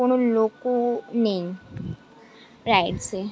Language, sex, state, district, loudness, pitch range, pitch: Bengali, female, West Bengal, Jhargram, -23 LUFS, 200-240 Hz, 230 Hz